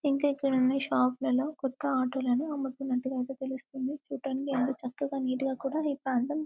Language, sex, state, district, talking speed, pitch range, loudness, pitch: Telugu, female, Telangana, Karimnagar, 165 wpm, 255-280 Hz, -31 LUFS, 270 Hz